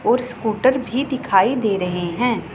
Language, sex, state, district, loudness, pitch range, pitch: Hindi, female, Punjab, Pathankot, -19 LUFS, 195-260 Hz, 245 Hz